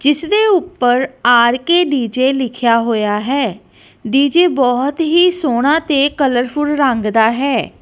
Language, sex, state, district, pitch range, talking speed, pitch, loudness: Punjabi, female, Punjab, Kapurthala, 245-300 Hz, 140 wpm, 270 Hz, -14 LUFS